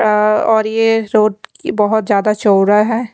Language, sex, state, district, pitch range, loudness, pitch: Hindi, female, Chhattisgarh, Raipur, 210-220 Hz, -13 LUFS, 215 Hz